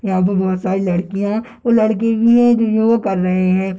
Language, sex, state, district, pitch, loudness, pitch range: Hindi, male, Bihar, Darbhanga, 200 Hz, -16 LUFS, 190-225 Hz